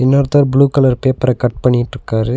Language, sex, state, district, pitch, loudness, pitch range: Tamil, male, Tamil Nadu, Nilgiris, 130 Hz, -14 LUFS, 125-140 Hz